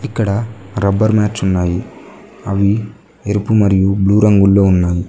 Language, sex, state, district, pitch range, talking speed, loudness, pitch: Telugu, male, Telangana, Mahabubabad, 95-105 Hz, 120 wpm, -14 LUFS, 100 Hz